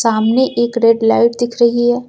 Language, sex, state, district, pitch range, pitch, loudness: Hindi, female, Uttar Pradesh, Lucknow, 230-240 Hz, 235 Hz, -13 LUFS